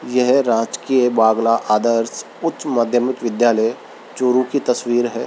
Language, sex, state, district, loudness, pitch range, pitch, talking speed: Hindi, male, Rajasthan, Churu, -17 LUFS, 115-125 Hz, 120 Hz, 125 wpm